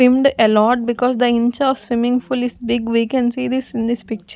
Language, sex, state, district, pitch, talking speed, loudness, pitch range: English, female, Punjab, Kapurthala, 240 Hz, 245 wpm, -17 LUFS, 230-255 Hz